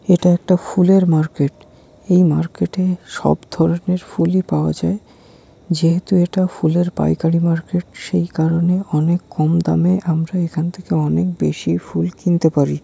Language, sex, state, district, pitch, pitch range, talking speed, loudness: Bengali, male, West Bengal, Kolkata, 170 Hz, 155-180 Hz, 135 wpm, -17 LUFS